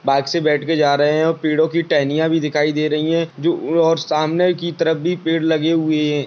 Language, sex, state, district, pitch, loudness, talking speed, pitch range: Hindi, male, Chhattisgarh, Sarguja, 160 Hz, -17 LUFS, 260 wpm, 150-165 Hz